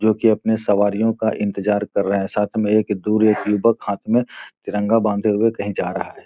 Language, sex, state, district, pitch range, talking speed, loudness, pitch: Hindi, male, Bihar, Gopalganj, 100-110 Hz, 200 wpm, -19 LUFS, 105 Hz